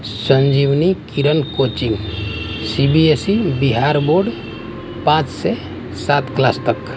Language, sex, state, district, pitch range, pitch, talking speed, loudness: Hindi, male, Bihar, West Champaran, 110-150 Hz, 135 Hz, 120 wpm, -17 LUFS